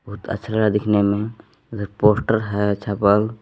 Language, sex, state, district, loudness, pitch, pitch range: Hindi, male, Jharkhand, Palamu, -20 LUFS, 105 Hz, 100-110 Hz